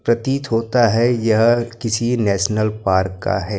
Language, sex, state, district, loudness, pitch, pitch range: Hindi, male, Maharashtra, Gondia, -18 LUFS, 115 Hz, 100-120 Hz